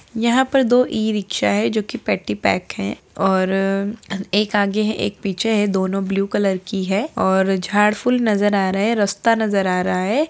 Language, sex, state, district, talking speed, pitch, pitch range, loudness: Hindi, female, Bihar, Saharsa, 200 wpm, 205 Hz, 195-220 Hz, -19 LUFS